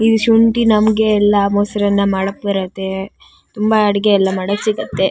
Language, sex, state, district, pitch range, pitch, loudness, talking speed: Kannada, female, Karnataka, Shimoga, 195-215 Hz, 205 Hz, -15 LUFS, 140 wpm